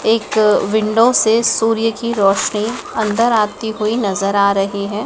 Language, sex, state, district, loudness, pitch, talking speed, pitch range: Hindi, female, Madhya Pradesh, Dhar, -15 LUFS, 220 Hz, 155 wpm, 205-225 Hz